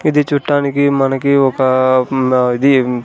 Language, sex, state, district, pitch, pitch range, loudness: Telugu, male, Andhra Pradesh, Sri Satya Sai, 135 Hz, 130-140 Hz, -13 LUFS